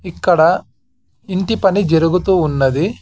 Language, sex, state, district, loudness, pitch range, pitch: Telugu, male, Andhra Pradesh, Sri Satya Sai, -15 LUFS, 165-195 Hz, 185 Hz